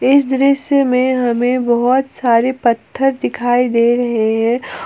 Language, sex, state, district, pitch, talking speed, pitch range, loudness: Hindi, female, Jharkhand, Palamu, 250 Hz, 135 wpm, 235-265 Hz, -15 LUFS